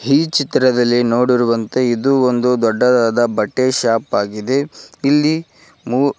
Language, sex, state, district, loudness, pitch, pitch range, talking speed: Kannada, male, Karnataka, Koppal, -16 LUFS, 125 Hz, 120-135 Hz, 115 wpm